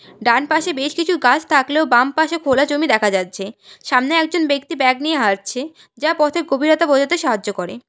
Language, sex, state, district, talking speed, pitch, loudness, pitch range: Bengali, female, West Bengal, Alipurduar, 185 wpm, 280 Hz, -17 LUFS, 245-315 Hz